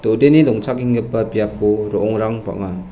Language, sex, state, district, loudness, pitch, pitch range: Garo, male, Meghalaya, West Garo Hills, -17 LUFS, 110 Hz, 105-120 Hz